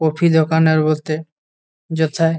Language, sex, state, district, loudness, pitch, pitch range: Bengali, male, West Bengal, Malda, -17 LUFS, 160 Hz, 155-160 Hz